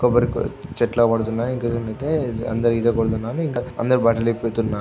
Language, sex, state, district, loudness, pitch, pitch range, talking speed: Telugu, male, Andhra Pradesh, Guntur, -21 LUFS, 115 Hz, 115-120 Hz, 175 wpm